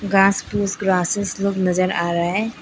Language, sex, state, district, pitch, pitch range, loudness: Hindi, female, Arunachal Pradesh, Lower Dibang Valley, 195 Hz, 180-200 Hz, -20 LUFS